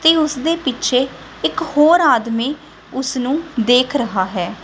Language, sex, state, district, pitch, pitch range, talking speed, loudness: Punjabi, female, Punjab, Kapurthala, 270 Hz, 245-315 Hz, 130 wpm, -17 LUFS